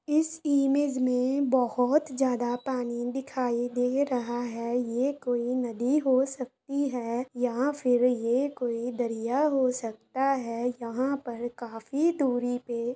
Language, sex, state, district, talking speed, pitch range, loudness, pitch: Hindi, female, West Bengal, Purulia, 130 wpm, 240-270 Hz, -28 LUFS, 250 Hz